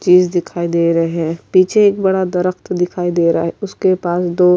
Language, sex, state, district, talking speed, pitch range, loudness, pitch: Urdu, female, Uttar Pradesh, Budaun, 225 wpm, 170-185 Hz, -15 LUFS, 180 Hz